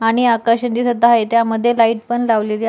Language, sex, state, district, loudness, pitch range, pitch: Marathi, female, Maharashtra, Dhule, -15 LUFS, 225-240 Hz, 230 Hz